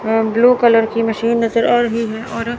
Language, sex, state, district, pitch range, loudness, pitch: Hindi, female, Chandigarh, Chandigarh, 225-235 Hz, -15 LUFS, 230 Hz